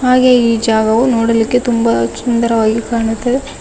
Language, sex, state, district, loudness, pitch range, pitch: Kannada, female, Karnataka, Koppal, -13 LUFS, 225-245 Hz, 230 Hz